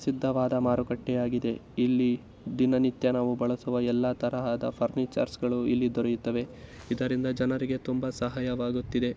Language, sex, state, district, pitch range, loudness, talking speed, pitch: Kannada, male, Karnataka, Shimoga, 120-130 Hz, -29 LUFS, 125 wpm, 125 Hz